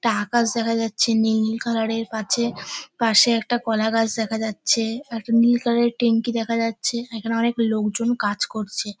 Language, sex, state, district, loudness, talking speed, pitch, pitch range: Bengali, female, West Bengal, North 24 Parganas, -21 LUFS, 160 wpm, 230 Hz, 220-235 Hz